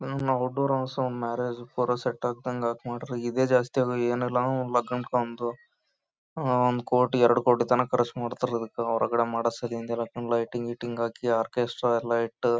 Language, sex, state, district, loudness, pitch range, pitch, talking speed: Kannada, male, Karnataka, Gulbarga, -27 LUFS, 120-125 Hz, 120 Hz, 150 wpm